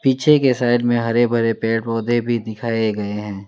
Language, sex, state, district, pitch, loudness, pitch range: Hindi, male, West Bengal, Alipurduar, 115 Hz, -18 LUFS, 110-120 Hz